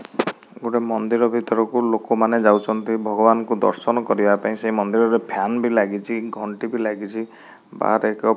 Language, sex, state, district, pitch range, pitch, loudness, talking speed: Odia, male, Odisha, Khordha, 110-115 Hz, 110 Hz, -20 LUFS, 145 wpm